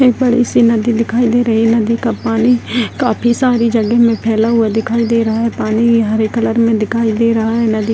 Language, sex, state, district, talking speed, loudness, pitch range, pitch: Hindi, female, Bihar, Darbhanga, 235 wpm, -13 LUFS, 225-235 Hz, 230 Hz